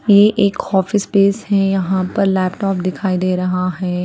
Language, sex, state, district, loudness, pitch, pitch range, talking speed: Hindi, female, Bihar, Patna, -16 LUFS, 190 Hz, 185-200 Hz, 175 wpm